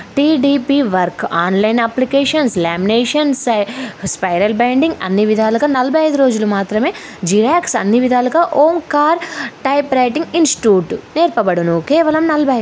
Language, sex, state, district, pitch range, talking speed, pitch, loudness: Telugu, female, Telangana, Karimnagar, 210-300 Hz, 110 wpm, 255 Hz, -14 LUFS